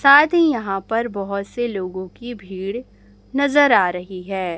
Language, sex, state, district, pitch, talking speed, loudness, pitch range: Hindi, male, Chhattisgarh, Raipur, 200 Hz, 170 wpm, -19 LUFS, 185-245 Hz